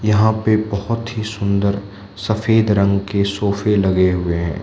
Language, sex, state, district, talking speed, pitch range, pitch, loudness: Hindi, male, Manipur, Imphal West, 155 wpm, 100-110 Hz, 100 Hz, -18 LUFS